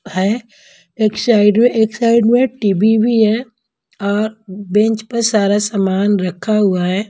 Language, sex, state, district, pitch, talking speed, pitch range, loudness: Hindi, female, Punjab, Pathankot, 215 Hz, 150 wpm, 200-230 Hz, -15 LUFS